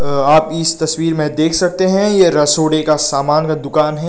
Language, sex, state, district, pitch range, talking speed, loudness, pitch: Hindi, male, Nagaland, Kohima, 150-165 Hz, 205 wpm, -14 LUFS, 155 Hz